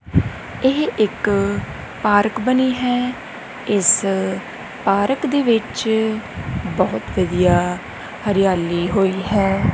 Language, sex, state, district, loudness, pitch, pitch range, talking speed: Punjabi, female, Punjab, Kapurthala, -19 LUFS, 200 Hz, 185-225 Hz, 85 wpm